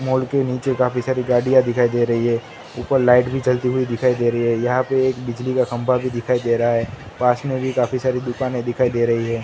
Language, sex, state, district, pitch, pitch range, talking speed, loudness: Hindi, male, Gujarat, Gandhinagar, 125 Hz, 120-130 Hz, 250 wpm, -19 LUFS